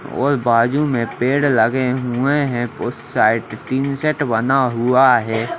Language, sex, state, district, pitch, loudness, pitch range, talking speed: Hindi, male, Bihar, Purnia, 125 Hz, -17 LUFS, 115-140 Hz, 130 wpm